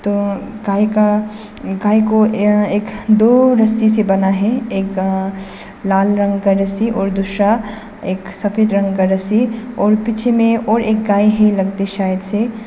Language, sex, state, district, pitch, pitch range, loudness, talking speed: Hindi, female, Arunachal Pradesh, Papum Pare, 210 Hz, 195-220 Hz, -15 LUFS, 165 wpm